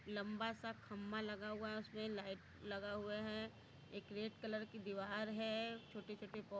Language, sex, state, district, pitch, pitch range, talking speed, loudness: Hindi, female, Uttar Pradesh, Varanasi, 210 Hz, 205-220 Hz, 180 wpm, -47 LUFS